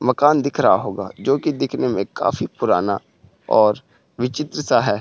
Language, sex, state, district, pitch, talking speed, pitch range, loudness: Hindi, male, Uttarakhand, Tehri Garhwal, 130 Hz, 145 wpm, 125-150 Hz, -19 LUFS